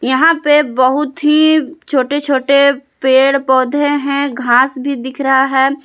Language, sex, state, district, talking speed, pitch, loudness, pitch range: Hindi, female, Jharkhand, Palamu, 145 wpm, 275 Hz, -13 LUFS, 265-290 Hz